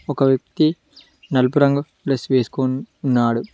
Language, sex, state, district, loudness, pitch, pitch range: Telugu, male, Telangana, Mahabubabad, -19 LUFS, 135 Hz, 130-155 Hz